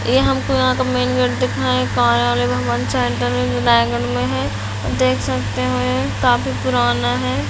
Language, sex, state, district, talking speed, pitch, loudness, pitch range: Hindi, female, Chhattisgarh, Raigarh, 135 wpm, 120 Hz, -18 LUFS, 115-125 Hz